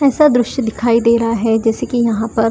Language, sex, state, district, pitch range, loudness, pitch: Hindi, female, Maharashtra, Chandrapur, 225-245 Hz, -15 LUFS, 230 Hz